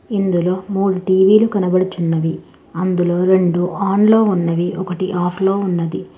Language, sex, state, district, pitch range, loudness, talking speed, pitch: Telugu, female, Telangana, Hyderabad, 175-195 Hz, -16 LUFS, 115 wpm, 185 Hz